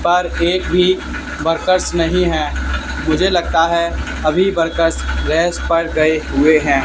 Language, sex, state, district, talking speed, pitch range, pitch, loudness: Hindi, male, Haryana, Charkhi Dadri, 140 wpm, 155-175 Hz, 165 Hz, -16 LUFS